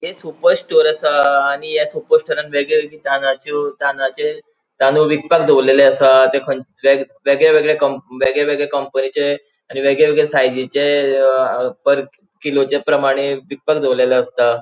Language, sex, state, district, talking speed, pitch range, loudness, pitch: Konkani, male, Goa, North and South Goa, 130 wpm, 135-155 Hz, -15 LUFS, 140 Hz